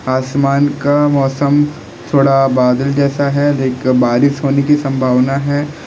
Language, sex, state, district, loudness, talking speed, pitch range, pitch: Hindi, male, Uttar Pradesh, Lalitpur, -13 LUFS, 135 wpm, 130-145 Hz, 140 Hz